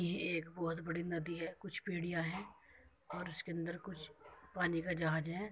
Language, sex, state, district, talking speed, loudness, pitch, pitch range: Hindi, female, Uttar Pradesh, Muzaffarnagar, 185 wpm, -41 LUFS, 170 Hz, 165-180 Hz